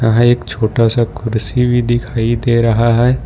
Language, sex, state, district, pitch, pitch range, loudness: Hindi, male, Jharkhand, Ranchi, 120 Hz, 115-120 Hz, -14 LUFS